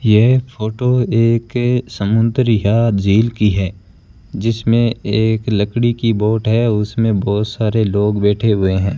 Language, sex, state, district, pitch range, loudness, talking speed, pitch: Hindi, male, Rajasthan, Bikaner, 105-115 Hz, -15 LUFS, 140 wpm, 110 Hz